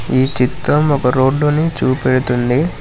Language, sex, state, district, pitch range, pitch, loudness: Telugu, male, Telangana, Hyderabad, 125-150 Hz, 130 Hz, -15 LUFS